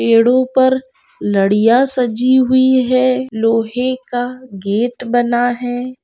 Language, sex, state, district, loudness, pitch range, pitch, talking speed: Hindi, female, Rajasthan, Churu, -15 LUFS, 235-255 Hz, 245 Hz, 110 wpm